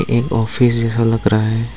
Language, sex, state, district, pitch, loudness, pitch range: Hindi, male, Tripura, Dhalai, 115 Hz, -16 LUFS, 110-120 Hz